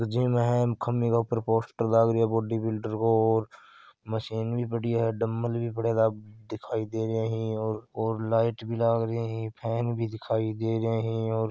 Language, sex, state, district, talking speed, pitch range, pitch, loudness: Hindi, male, Rajasthan, Churu, 205 wpm, 110-115 Hz, 115 Hz, -28 LUFS